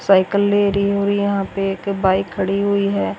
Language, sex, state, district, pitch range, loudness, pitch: Hindi, female, Haryana, Rohtak, 195-200 Hz, -18 LUFS, 200 Hz